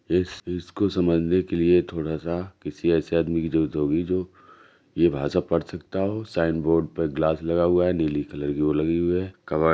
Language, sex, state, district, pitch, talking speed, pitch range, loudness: Hindi, male, Uttar Pradesh, Jalaun, 85 Hz, 205 wpm, 80-90 Hz, -24 LUFS